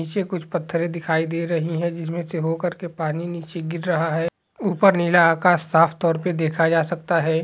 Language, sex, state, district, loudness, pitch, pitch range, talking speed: Hindi, male, Bihar, Purnia, -21 LUFS, 170 Hz, 165-175 Hz, 210 wpm